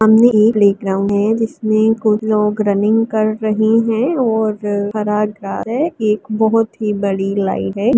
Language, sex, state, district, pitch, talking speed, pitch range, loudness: Hindi, female, Uttar Pradesh, Varanasi, 215 Hz, 160 wpm, 210-225 Hz, -15 LUFS